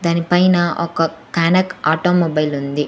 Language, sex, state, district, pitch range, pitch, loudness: Telugu, female, Andhra Pradesh, Sri Satya Sai, 155-175 Hz, 170 Hz, -16 LUFS